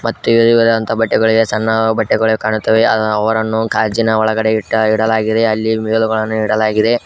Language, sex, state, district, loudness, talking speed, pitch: Kannada, male, Karnataka, Koppal, -14 LUFS, 125 wpm, 110 Hz